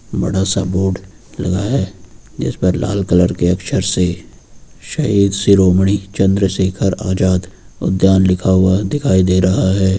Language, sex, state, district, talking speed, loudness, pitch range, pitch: Hindi, male, Uttar Pradesh, Lucknow, 140 wpm, -15 LUFS, 95-100 Hz, 95 Hz